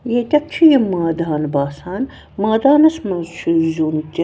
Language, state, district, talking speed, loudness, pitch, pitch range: Kashmiri, Punjab, Kapurthala, 140 wpm, -16 LUFS, 185 Hz, 160-265 Hz